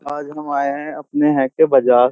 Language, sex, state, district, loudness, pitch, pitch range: Hindi, male, Uttar Pradesh, Jyotiba Phule Nagar, -17 LUFS, 145 Hz, 135-150 Hz